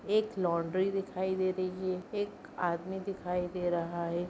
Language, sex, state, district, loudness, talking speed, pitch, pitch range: Hindi, female, Bihar, Begusarai, -34 LUFS, 165 wpm, 185 Hz, 175-190 Hz